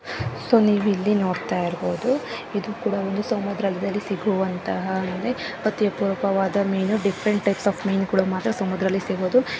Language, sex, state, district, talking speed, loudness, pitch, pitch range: Kannada, female, Karnataka, Mysore, 130 wpm, -23 LUFS, 200 Hz, 190-210 Hz